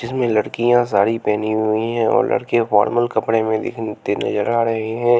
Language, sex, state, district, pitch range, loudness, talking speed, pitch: Hindi, male, Bihar, West Champaran, 110-120 Hz, -18 LUFS, 195 wpm, 115 Hz